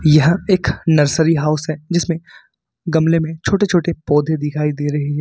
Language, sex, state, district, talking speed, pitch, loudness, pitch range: Hindi, male, Jharkhand, Ranchi, 170 wpm, 160 Hz, -17 LUFS, 150-170 Hz